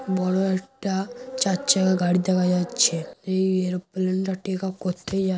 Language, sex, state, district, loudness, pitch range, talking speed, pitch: Bengali, male, West Bengal, Malda, -24 LUFS, 185-195 Hz, 135 wpm, 190 Hz